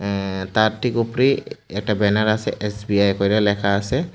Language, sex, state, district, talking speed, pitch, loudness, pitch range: Bengali, male, Tripura, Unakoti, 175 wpm, 105 Hz, -20 LUFS, 100-110 Hz